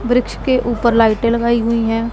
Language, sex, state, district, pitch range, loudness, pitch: Hindi, female, Punjab, Pathankot, 230-240 Hz, -15 LUFS, 235 Hz